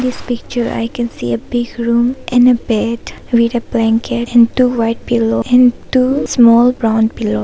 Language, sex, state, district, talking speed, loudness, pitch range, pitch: English, female, Arunachal Pradesh, Papum Pare, 195 wpm, -14 LUFS, 225-245 Hz, 235 Hz